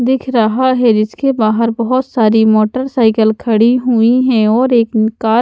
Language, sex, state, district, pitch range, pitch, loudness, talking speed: Hindi, female, Haryana, Charkhi Dadri, 220-255 Hz, 230 Hz, -12 LUFS, 165 wpm